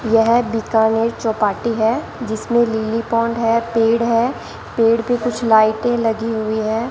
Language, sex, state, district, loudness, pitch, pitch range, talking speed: Hindi, female, Rajasthan, Bikaner, -17 LUFS, 230 Hz, 220-235 Hz, 130 wpm